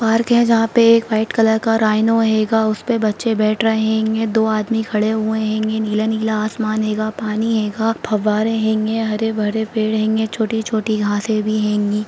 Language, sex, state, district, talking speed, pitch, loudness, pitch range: Hindi, female, Bihar, Sitamarhi, 175 wpm, 220 Hz, -17 LUFS, 215-225 Hz